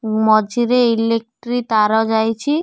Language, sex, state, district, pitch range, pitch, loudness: Odia, female, Odisha, Nuapada, 220-240 Hz, 225 Hz, -16 LUFS